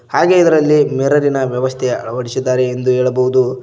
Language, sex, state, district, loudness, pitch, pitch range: Kannada, male, Karnataka, Koppal, -14 LUFS, 130 Hz, 125-145 Hz